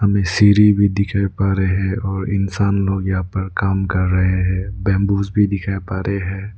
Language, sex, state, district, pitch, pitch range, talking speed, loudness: Hindi, male, Arunachal Pradesh, Lower Dibang Valley, 100 Hz, 95-100 Hz, 180 wpm, -18 LUFS